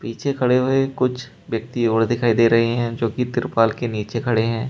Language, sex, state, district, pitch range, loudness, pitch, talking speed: Hindi, male, Uttar Pradesh, Shamli, 115-125 Hz, -20 LUFS, 120 Hz, 205 wpm